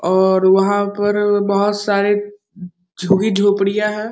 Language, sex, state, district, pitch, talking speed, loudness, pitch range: Hindi, male, Bihar, Muzaffarpur, 200 Hz, 115 wpm, -16 LUFS, 190-205 Hz